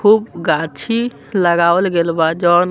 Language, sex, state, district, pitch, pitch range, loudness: Bhojpuri, male, Bihar, Muzaffarpur, 175 Hz, 170-205 Hz, -15 LUFS